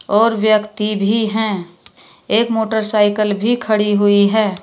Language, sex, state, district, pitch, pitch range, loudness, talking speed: Hindi, female, Uttar Pradesh, Shamli, 215 Hz, 205-220 Hz, -16 LUFS, 130 wpm